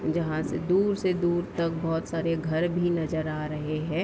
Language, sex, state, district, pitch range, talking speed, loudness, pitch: Hindi, female, Bihar, Darbhanga, 160-175 Hz, 205 wpm, -27 LUFS, 165 Hz